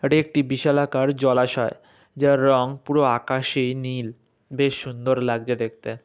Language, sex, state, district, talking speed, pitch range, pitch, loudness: Bengali, male, West Bengal, Malda, 130 wpm, 125-140 Hz, 130 Hz, -22 LUFS